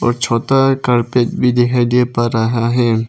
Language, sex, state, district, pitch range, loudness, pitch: Hindi, male, Arunachal Pradesh, Papum Pare, 115-125 Hz, -15 LUFS, 120 Hz